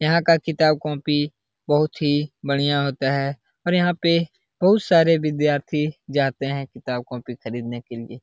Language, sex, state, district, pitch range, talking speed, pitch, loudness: Hindi, male, Uttar Pradesh, Jalaun, 135-160 Hz, 160 wpm, 145 Hz, -22 LUFS